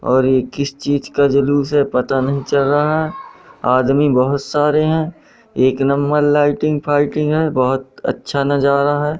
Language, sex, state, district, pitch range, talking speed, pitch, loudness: Hindi, male, Madhya Pradesh, Katni, 135-150 Hz, 165 wpm, 145 Hz, -16 LUFS